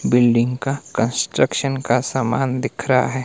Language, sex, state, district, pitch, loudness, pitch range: Hindi, male, Himachal Pradesh, Shimla, 125 Hz, -19 LUFS, 120-135 Hz